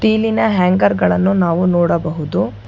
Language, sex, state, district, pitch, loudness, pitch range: Kannada, female, Karnataka, Bangalore, 175 Hz, -15 LUFS, 155-195 Hz